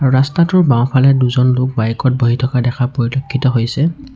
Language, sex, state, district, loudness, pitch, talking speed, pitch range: Assamese, male, Assam, Sonitpur, -14 LUFS, 130 Hz, 160 wpm, 125-135 Hz